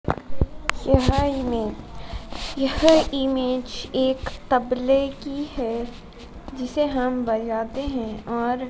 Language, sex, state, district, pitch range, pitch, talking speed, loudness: Hindi, male, Madhya Pradesh, Dhar, 240-275 Hz, 255 Hz, 90 wpm, -24 LUFS